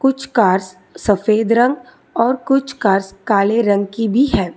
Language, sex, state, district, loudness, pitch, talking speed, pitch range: Hindi, female, Telangana, Hyderabad, -16 LUFS, 220 Hz, 155 wpm, 195-255 Hz